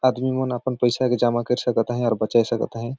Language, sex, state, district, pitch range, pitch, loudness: Sadri, male, Chhattisgarh, Jashpur, 115-130 Hz, 120 Hz, -22 LUFS